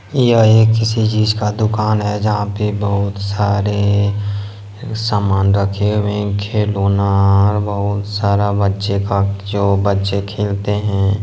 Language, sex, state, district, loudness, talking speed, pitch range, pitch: Hindi, male, Jharkhand, Ranchi, -16 LUFS, 130 wpm, 100-105 Hz, 100 Hz